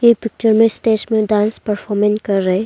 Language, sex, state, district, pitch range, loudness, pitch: Hindi, female, Arunachal Pradesh, Longding, 210-225 Hz, -16 LUFS, 215 Hz